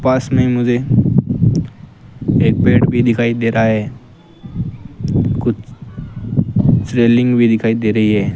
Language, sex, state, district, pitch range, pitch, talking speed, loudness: Hindi, male, Rajasthan, Bikaner, 115-135 Hz, 120 Hz, 120 wpm, -15 LUFS